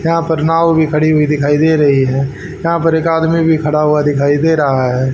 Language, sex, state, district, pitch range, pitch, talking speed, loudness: Hindi, male, Haryana, Charkhi Dadri, 145-160 Hz, 155 Hz, 245 wpm, -13 LUFS